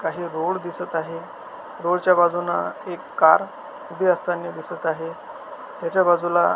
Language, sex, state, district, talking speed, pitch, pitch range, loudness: Marathi, male, Maharashtra, Solapur, 135 wpm, 175 Hz, 165-180 Hz, -22 LUFS